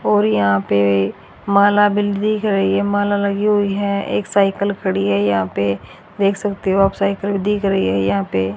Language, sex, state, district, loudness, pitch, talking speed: Hindi, female, Haryana, Rohtak, -17 LUFS, 195 Hz, 195 wpm